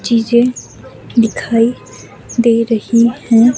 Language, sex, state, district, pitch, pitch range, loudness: Hindi, female, Himachal Pradesh, Shimla, 230 Hz, 230-235 Hz, -13 LUFS